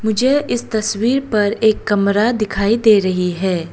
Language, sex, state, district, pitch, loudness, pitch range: Hindi, female, Arunachal Pradesh, Papum Pare, 215 Hz, -16 LUFS, 200-230 Hz